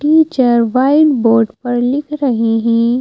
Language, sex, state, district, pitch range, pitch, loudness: Hindi, female, Madhya Pradesh, Bhopal, 230-290 Hz, 245 Hz, -13 LUFS